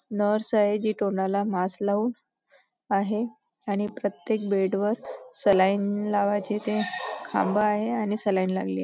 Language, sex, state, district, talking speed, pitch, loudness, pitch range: Marathi, female, Maharashtra, Nagpur, 135 wpm, 210 Hz, -26 LUFS, 200-215 Hz